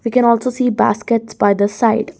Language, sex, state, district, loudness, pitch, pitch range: English, female, Karnataka, Bangalore, -15 LUFS, 230 Hz, 215-245 Hz